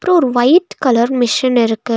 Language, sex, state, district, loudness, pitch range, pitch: Tamil, female, Tamil Nadu, Nilgiris, -13 LUFS, 235-295 Hz, 245 Hz